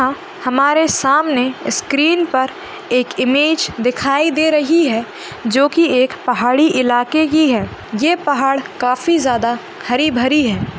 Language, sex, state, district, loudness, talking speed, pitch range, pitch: Hindi, female, Maharashtra, Nagpur, -15 LUFS, 140 wpm, 250-315 Hz, 275 Hz